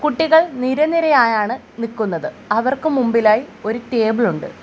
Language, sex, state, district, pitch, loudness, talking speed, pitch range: Malayalam, female, Kerala, Kollam, 235 Hz, -17 LUFS, 105 wpm, 215-275 Hz